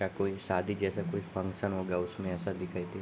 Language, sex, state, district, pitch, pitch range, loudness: Hindi, male, Uttar Pradesh, Jalaun, 95 Hz, 90-100 Hz, -34 LUFS